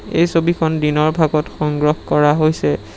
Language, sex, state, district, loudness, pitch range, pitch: Assamese, male, Assam, Sonitpur, -16 LUFS, 150-160 Hz, 150 Hz